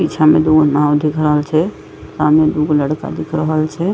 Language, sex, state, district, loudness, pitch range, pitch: Maithili, female, Bihar, Madhepura, -14 LUFS, 150-155 Hz, 155 Hz